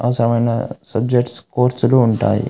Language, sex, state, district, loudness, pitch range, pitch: Telugu, male, Andhra Pradesh, Anantapur, -17 LUFS, 115-125 Hz, 120 Hz